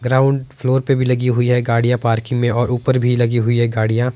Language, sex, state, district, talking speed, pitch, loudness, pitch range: Hindi, male, Himachal Pradesh, Shimla, 245 wpm, 125 Hz, -17 LUFS, 120-130 Hz